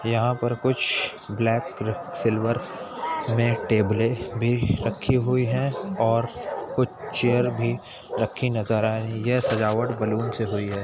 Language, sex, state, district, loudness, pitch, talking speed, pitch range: Hindi, male, Uttar Pradesh, Budaun, -24 LUFS, 115 Hz, 150 wpm, 110-125 Hz